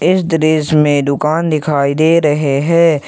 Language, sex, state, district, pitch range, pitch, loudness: Hindi, male, Jharkhand, Ranchi, 145-160 Hz, 155 Hz, -13 LUFS